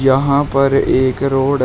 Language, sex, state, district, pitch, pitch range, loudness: Hindi, male, Uttar Pradesh, Shamli, 135 Hz, 135-140 Hz, -14 LUFS